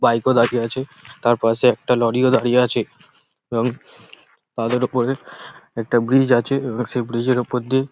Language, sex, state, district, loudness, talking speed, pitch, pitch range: Bengali, male, West Bengal, Paschim Medinipur, -19 LUFS, 175 wpm, 125 Hz, 120-130 Hz